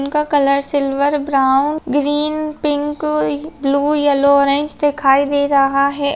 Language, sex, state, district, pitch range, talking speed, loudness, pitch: Hindi, female, Chhattisgarh, Kabirdham, 275-295 Hz, 135 wpm, -16 LUFS, 285 Hz